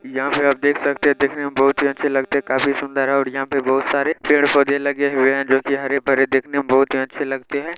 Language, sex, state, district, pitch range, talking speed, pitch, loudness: Maithili, male, Bihar, Saharsa, 135-140 Hz, 270 wpm, 140 Hz, -18 LUFS